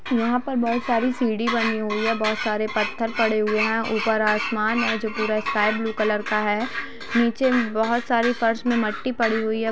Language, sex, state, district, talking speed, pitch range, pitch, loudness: Hindi, female, Bihar, Sitamarhi, 195 wpm, 215-235 Hz, 225 Hz, -22 LUFS